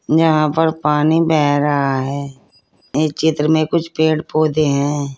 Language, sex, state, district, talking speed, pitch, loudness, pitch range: Hindi, female, Uttar Pradesh, Saharanpur, 150 wpm, 155 Hz, -16 LUFS, 145-160 Hz